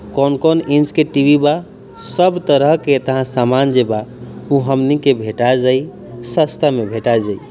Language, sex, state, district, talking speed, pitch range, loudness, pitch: Hindi, male, Bihar, East Champaran, 150 wpm, 120-150 Hz, -15 LUFS, 140 Hz